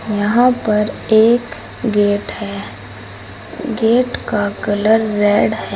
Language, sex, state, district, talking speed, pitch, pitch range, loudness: Hindi, female, Uttar Pradesh, Saharanpur, 105 wpm, 210 Hz, 135-225 Hz, -16 LUFS